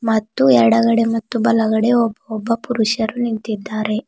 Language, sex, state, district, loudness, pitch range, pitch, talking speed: Kannada, female, Karnataka, Bidar, -17 LUFS, 215-230 Hz, 225 Hz, 105 wpm